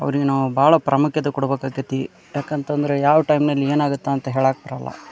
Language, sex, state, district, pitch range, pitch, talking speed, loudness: Kannada, male, Karnataka, Dharwad, 135-150 Hz, 140 Hz, 165 wpm, -20 LUFS